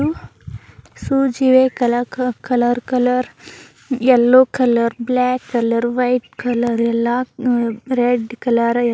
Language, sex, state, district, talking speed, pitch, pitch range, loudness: Kannada, female, Karnataka, Bijapur, 105 wpm, 245 Hz, 235-255 Hz, -17 LUFS